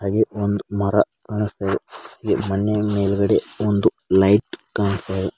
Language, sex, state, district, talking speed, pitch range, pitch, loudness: Kannada, male, Karnataka, Bidar, 135 wpm, 100-105 Hz, 100 Hz, -21 LUFS